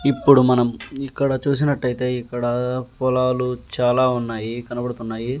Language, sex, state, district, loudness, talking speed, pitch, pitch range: Telugu, male, Andhra Pradesh, Annamaya, -21 LUFS, 100 wpm, 125 Hz, 120-130 Hz